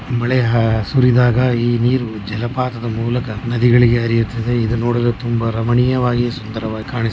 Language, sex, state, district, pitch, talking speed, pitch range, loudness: Kannada, male, Karnataka, Chamarajanagar, 120 Hz, 125 wpm, 115-125 Hz, -17 LUFS